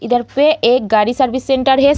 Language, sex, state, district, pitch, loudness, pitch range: Hindi, female, Uttar Pradesh, Deoria, 260 Hz, -14 LUFS, 240-270 Hz